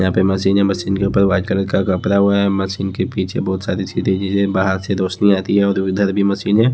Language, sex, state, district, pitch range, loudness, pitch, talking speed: Hindi, male, Haryana, Charkhi Dadri, 95-100 Hz, -17 LUFS, 95 Hz, 275 wpm